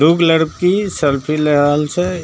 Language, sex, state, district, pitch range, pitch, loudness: Maithili, male, Bihar, Begusarai, 150-180 Hz, 160 Hz, -15 LUFS